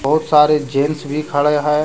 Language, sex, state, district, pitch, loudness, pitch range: Hindi, male, Jharkhand, Deoghar, 150 Hz, -16 LUFS, 145-150 Hz